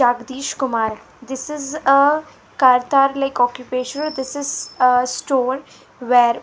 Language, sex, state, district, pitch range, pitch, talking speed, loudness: English, female, Punjab, Fazilka, 250-275 Hz, 260 Hz, 120 wpm, -18 LUFS